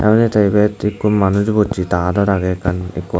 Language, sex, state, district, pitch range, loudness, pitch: Chakma, male, Tripura, Unakoti, 90-105 Hz, -16 LUFS, 100 Hz